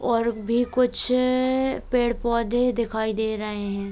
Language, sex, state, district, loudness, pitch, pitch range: Hindi, female, Bihar, Katihar, -21 LUFS, 235 Hz, 220-250 Hz